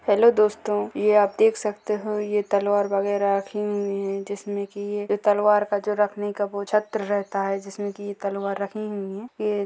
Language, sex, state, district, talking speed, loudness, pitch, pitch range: Hindi, female, Chhattisgarh, Bastar, 205 wpm, -24 LUFS, 205 Hz, 200-210 Hz